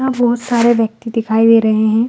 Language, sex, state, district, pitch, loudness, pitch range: Hindi, female, Bihar, Gaya, 230 Hz, -14 LUFS, 220-240 Hz